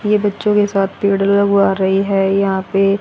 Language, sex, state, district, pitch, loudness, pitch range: Hindi, female, Haryana, Rohtak, 195 Hz, -15 LUFS, 195-205 Hz